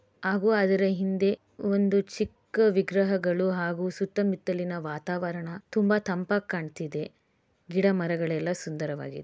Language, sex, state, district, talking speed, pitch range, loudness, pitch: Kannada, female, Karnataka, Bellary, 80 wpm, 170-195 Hz, -28 LUFS, 185 Hz